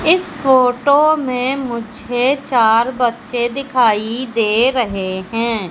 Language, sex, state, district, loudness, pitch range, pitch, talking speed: Hindi, female, Madhya Pradesh, Katni, -16 LUFS, 230-265 Hz, 245 Hz, 105 wpm